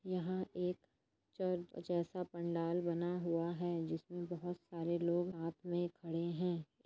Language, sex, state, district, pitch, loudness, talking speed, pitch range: Hindi, female, Chhattisgarh, Raigarh, 175 Hz, -40 LUFS, 140 wpm, 170-175 Hz